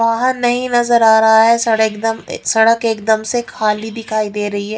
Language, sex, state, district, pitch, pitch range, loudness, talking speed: Hindi, female, Haryana, Rohtak, 225 Hz, 220-235 Hz, -14 LUFS, 200 wpm